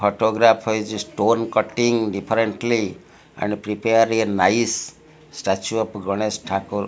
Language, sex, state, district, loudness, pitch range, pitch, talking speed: English, male, Odisha, Malkangiri, -21 LUFS, 105-115 Hz, 110 Hz, 120 wpm